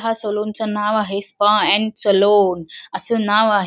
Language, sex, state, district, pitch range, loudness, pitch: Marathi, female, Maharashtra, Solapur, 200-215 Hz, -17 LUFS, 210 Hz